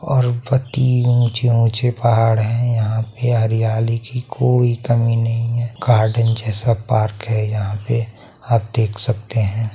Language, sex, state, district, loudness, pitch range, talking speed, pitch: Hindi, male, Bihar, Saharsa, -18 LUFS, 110-120 Hz, 140 wpm, 115 Hz